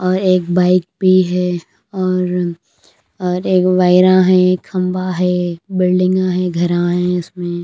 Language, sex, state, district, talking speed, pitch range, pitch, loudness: Hindi, female, Punjab, Kapurthala, 140 wpm, 180-185 Hz, 180 Hz, -15 LUFS